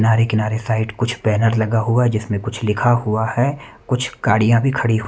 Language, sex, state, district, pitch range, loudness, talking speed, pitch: Hindi, male, Haryana, Charkhi Dadri, 110-120 Hz, -18 LUFS, 225 wpm, 115 Hz